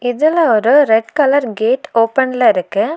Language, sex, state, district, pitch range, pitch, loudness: Tamil, female, Tamil Nadu, Nilgiris, 230-300 Hz, 260 Hz, -13 LUFS